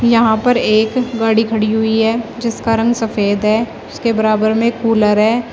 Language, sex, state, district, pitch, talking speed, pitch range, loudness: Hindi, female, Uttar Pradesh, Shamli, 225 Hz, 185 wpm, 220-235 Hz, -15 LUFS